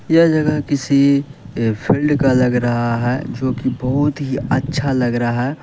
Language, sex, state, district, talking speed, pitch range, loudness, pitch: Hindi, male, Uttar Pradesh, Lalitpur, 170 wpm, 125-145 Hz, -17 LUFS, 135 Hz